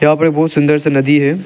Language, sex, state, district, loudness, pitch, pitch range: Hindi, male, Arunachal Pradesh, Lower Dibang Valley, -12 LUFS, 150 Hz, 145-160 Hz